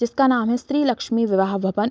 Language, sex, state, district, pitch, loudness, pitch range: Hindi, female, Bihar, Sitamarhi, 235 Hz, -20 LUFS, 205-255 Hz